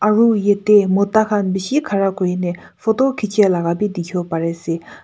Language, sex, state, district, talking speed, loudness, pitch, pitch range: Nagamese, female, Nagaland, Kohima, 145 wpm, -17 LUFS, 200 Hz, 180-210 Hz